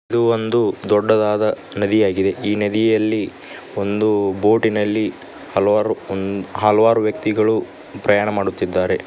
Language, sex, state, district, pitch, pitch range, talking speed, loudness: Kannada, male, Karnataka, Koppal, 105 Hz, 100-110 Hz, 95 wpm, -18 LUFS